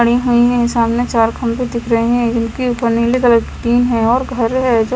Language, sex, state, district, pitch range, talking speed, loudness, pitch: Hindi, female, Himachal Pradesh, Shimla, 230-245 Hz, 205 wpm, -14 LUFS, 235 Hz